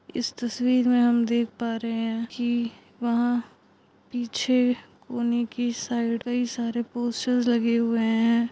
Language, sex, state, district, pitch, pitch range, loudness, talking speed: Hindi, female, Bihar, Purnia, 235 Hz, 230-245 Hz, -25 LUFS, 140 wpm